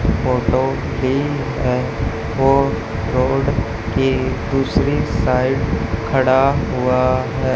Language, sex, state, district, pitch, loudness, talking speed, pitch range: Hindi, male, Haryana, Charkhi Dadri, 130 Hz, -18 LUFS, 85 wpm, 115-135 Hz